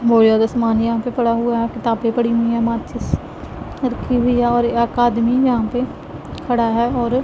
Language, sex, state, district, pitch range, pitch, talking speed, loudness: Hindi, female, Punjab, Pathankot, 230-245 Hz, 235 Hz, 200 wpm, -18 LUFS